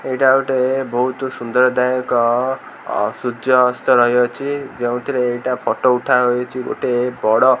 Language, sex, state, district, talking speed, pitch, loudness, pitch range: Odia, male, Odisha, Khordha, 100 wpm, 125 Hz, -17 LUFS, 125-130 Hz